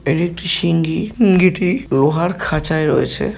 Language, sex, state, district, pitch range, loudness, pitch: Bengali, male, West Bengal, North 24 Parganas, 160-185 Hz, -16 LUFS, 170 Hz